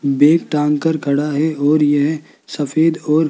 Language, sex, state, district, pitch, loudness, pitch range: Hindi, male, Rajasthan, Jaipur, 150 Hz, -16 LUFS, 145-160 Hz